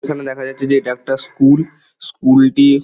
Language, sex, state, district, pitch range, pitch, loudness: Bengali, male, West Bengal, Dakshin Dinajpur, 135-140 Hz, 135 Hz, -14 LUFS